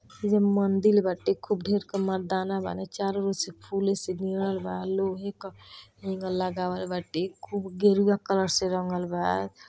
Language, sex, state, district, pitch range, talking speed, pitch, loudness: Hindi, female, Uttar Pradesh, Deoria, 185-200 Hz, 160 wpm, 190 Hz, -27 LUFS